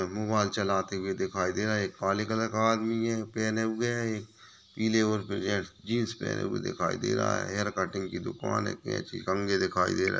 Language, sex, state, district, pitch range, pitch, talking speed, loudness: Hindi, male, Chhattisgarh, Kabirdham, 100-110 Hz, 110 Hz, 225 wpm, -30 LUFS